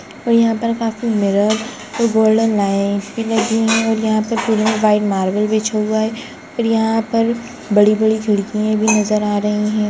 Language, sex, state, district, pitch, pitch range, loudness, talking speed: Hindi, female, Uttarakhand, Tehri Garhwal, 220 Hz, 210-225 Hz, -16 LUFS, 180 wpm